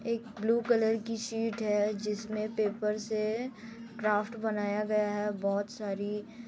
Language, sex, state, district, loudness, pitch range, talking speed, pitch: Hindi, female, Jharkhand, Jamtara, -32 LUFS, 210-225 Hz, 140 wpm, 215 Hz